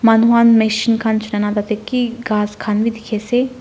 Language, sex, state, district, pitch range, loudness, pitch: Nagamese, female, Nagaland, Dimapur, 215-235 Hz, -16 LUFS, 225 Hz